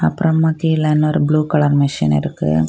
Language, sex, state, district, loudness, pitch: Tamil, female, Tamil Nadu, Kanyakumari, -16 LUFS, 150 Hz